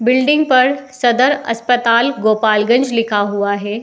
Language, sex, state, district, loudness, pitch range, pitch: Hindi, female, Uttar Pradesh, Etah, -14 LUFS, 215-260 Hz, 240 Hz